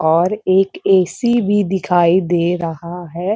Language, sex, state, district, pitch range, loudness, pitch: Hindi, female, Uttar Pradesh, Muzaffarnagar, 170-195 Hz, -16 LUFS, 180 Hz